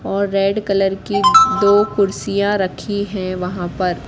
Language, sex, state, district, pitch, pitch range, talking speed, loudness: Hindi, female, Madhya Pradesh, Katni, 195 Hz, 190-205 Hz, 145 wpm, -16 LUFS